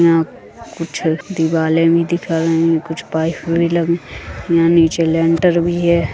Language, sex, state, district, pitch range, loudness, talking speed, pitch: Hindi, female, Chhattisgarh, Rajnandgaon, 165-170 Hz, -16 LUFS, 145 wpm, 165 Hz